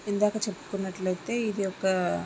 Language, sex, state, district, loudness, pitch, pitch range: Telugu, female, Andhra Pradesh, Srikakulam, -29 LUFS, 195 Hz, 185-210 Hz